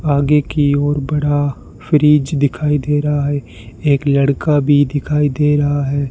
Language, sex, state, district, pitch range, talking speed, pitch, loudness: Hindi, male, Rajasthan, Bikaner, 140-150 Hz, 155 wpm, 145 Hz, -15 LUFS